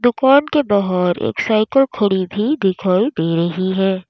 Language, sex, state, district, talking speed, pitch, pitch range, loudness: Hindi, female, Uttar Pradesh, Lalitpur, 160 wpm, 195 Hz, 185-245 Hz, -16 LUFS